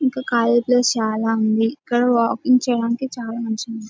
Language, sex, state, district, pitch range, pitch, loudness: Telugu, female, Telangana, Nalgonda, 225-250 Hz, 235 Hz, -19 LUFS